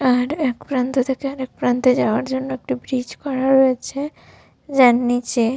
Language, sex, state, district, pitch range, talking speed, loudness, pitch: Bengali, female, Jharkhand, Sahebganj, 250-270 Hz, 140 wpm, -19 LUFS, 260 Hz